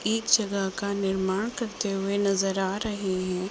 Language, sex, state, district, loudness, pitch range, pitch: Hindi, female, Uttar Pradesh, Gorakhpur, -27 LUFS, 190-215 Hz, 200 Hz